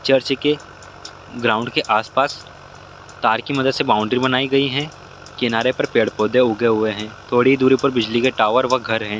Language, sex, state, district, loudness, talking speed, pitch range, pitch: Hindi, male, Bihar, Lakhisarai, -18 LUFS, 190 wpm, 110-135 Hz, 125 Hz